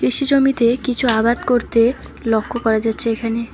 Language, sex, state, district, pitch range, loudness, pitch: Bengali, female, West Bengal, Alipurduar, 225-250 Hz, -17 LUFS, 235 Hz